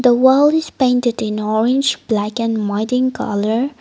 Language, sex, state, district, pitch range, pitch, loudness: English, female, Nagaland, Dimapur, 215-260 Hz, 240 Hz, -16 LUFS